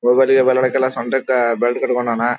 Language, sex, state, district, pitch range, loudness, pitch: Kannada, male, Karnataka, Dharwad, 120-130 Hz, -16 LUFS, 125 Hz